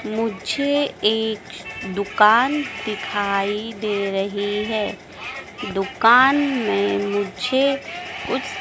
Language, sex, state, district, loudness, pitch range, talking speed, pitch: Hindi, female, Madhya Pradesh, Dhar, -21 LUFS, 200-255 Hz, 85 wpm, 215 Hz